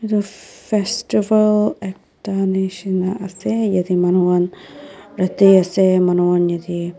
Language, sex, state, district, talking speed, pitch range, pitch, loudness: Nagamese, female, Nagaland, Dimapur, 95 wpm, 180-205 Hz, 190 Hz, -17 LUFS